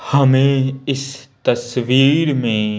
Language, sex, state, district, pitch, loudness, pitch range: Hindi, male, Bihar, Patna, 135 Hz, -16 LUFS, 125-135 Hz